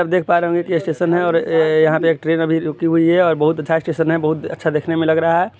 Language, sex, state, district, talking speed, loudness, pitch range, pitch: Hindi, male, Bihar, East Champaran, 330 wpm, -16 LUFS, 160-170 Hz, 165 Hz